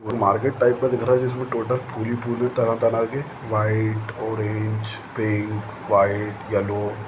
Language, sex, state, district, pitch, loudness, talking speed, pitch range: Hindi, male, Bihar, Samastipur, 110 Hz, -23 LUFS, 170 wpm, 105-125 Hz